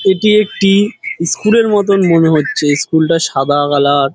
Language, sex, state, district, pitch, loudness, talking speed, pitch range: Bengali, male, West Bengal, Dakshin Dinajpur, 165 Hz, -12 LUFS, 160 wpm, 145-200 Hz